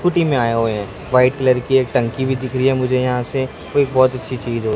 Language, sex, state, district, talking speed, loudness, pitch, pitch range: Hindi, male, Chhattisgarh, Raipur, 290 wpm, -17 LUFS, 130 Hz, 120-130 Hz